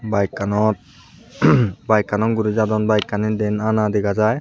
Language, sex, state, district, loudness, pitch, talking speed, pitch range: Chakma, male, Tripura, Unakoti, -19 LUFS, 110 Hz, 165 wpm, 105-110 Hz